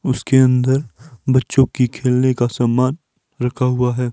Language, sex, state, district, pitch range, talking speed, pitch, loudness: Hindi, male, Himachal Pradesh, Shimla, 125-130 Hz, 145 wpm, 125 Hz, -17 LUFS